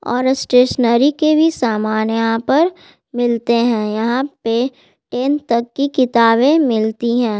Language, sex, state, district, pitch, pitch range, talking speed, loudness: Hindi, female, Bihar, Gaya, 245 Hz, 230-270 Hz, 140 wpm, -16 LUFS